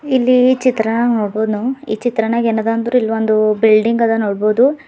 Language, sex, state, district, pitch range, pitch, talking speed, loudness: Kannada, female, Karnataka, Bidar, 220-250 Hz, 225 Hz, 160 wpm, -15 LUFS